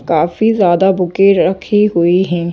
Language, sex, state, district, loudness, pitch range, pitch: Hindi, female, Madhya Pradesh, Bhopal, -12 LUFS, 175-195 Hz, 185 Hz